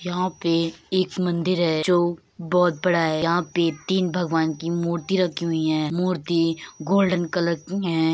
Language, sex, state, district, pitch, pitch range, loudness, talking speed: Hindi, female, Uttar Pradesh, Hamirpur, 170 Hz, 165-180 Hz, -23 LUFS, 175 wpm